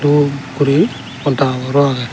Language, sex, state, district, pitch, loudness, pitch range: Chakma, male, Tripura, Dhalai, 140 Hz, -15 LUFS, 130-140 Hz